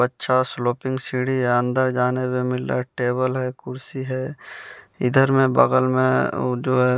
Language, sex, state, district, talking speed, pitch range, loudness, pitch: Hindi, male, Bihar, West Champaran, 170 wpm, 125-130 Hz, -21 LUFS, 125 Hz